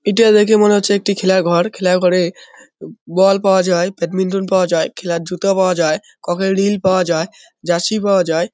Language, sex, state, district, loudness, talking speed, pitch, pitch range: Bengali, male, West Bengal, Jalpaiguri, -15 LUFS, 175 wpm, 190 Hz, 175-200 Hz